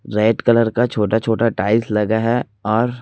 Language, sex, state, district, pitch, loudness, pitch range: Hindi, male, Chhattisgarh, Raipur, 115 Hz, -17 LUFS, 110-115 Hz